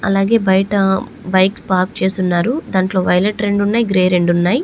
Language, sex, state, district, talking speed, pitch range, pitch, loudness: Telugu, female, Andhra Pradesh, Chittoor, 140 wpm, 185-205 Hz, 190 Hz, -15 LUFS